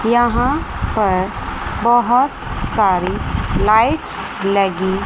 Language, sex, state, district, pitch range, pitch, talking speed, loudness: Hindi, female, Chandigarh, Chandigarh, 195-240 Hz, 230 Hz, 70 wpm, -17 LUFS